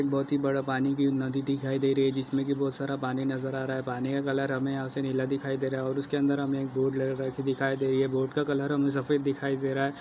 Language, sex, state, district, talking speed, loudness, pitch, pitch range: Hindi, male, Goa, North and South Goa, 295 wpm, -29 LUFS, 135 Hz, 135-140 Hz